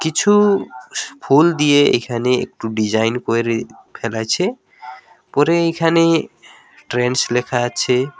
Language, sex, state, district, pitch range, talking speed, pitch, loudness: Bengali, male, West Bengal, Alipurduar, 120-160 Hz, 95 wpm, 125 Hz, -17 LUFS